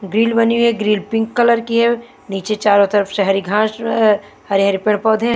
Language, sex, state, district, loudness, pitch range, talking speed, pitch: Hindi, female, Haryana, Charkhi Dadri, -16 LUFS, 200-230 Hz, 200 wpm, 215 Hz